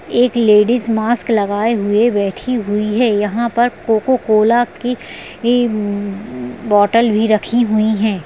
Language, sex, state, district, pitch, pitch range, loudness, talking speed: Hindi, female, Bihar, Jamui, 220 Hz, 210-235 Hz, -15 LUFS, 130 wpm